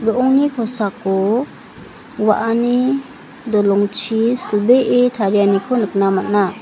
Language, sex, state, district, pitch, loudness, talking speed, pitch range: Garo, female, Meghalaya, West Garo Hills, 225 Hz, -16 LUFS, 70 wpm, 205-250 Hz